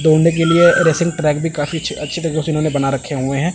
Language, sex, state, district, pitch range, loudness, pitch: Hindi, male, Chandigarh, Chandigarh, 150-165 Hz, -16 LUFS, 155 Hz